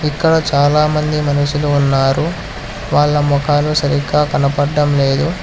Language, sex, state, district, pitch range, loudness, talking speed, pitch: Telugu, male, Telangana, Hyderabad, 145-150 Hz, -14 LUFS, 110 wpm, 145 Hz